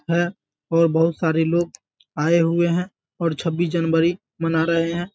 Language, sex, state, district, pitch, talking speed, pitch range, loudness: Hindi, male, Bihar, Bhagalpur, 165 Hz, 165 wpm, 165-170 Hz, -21 LUFS